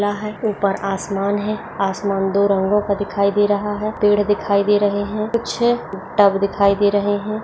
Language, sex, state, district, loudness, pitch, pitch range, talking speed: Hindi, female, Maharashtra, Dhule, -18 LUFS, 205 Hz, 200-210 Hz, 185 wpm